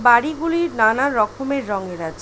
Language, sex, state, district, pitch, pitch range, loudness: Bengali, female, West Bengal, Paschim Medinipur, 240 Hz, 210-280 Hz, -19 LUFS